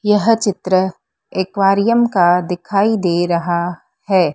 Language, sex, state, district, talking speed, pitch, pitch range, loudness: Hindi, female, Madhya Pradesh, Dhar, 110 wpm, 190 Hz, 175-210 Hz, -16 LUFS